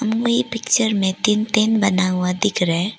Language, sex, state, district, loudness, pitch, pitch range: Hindi, female, Arunachal Pradesh, Lower Dibang Valley, -18 LUFS, 210 Hz, 185-225 Hz